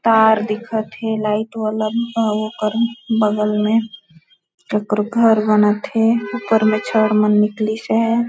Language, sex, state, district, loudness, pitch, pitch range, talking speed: Hindi, female, Chhattisgarh, Balrampur, -17 LUFS, 215 Hz, 210-225 Hz, 130 wpm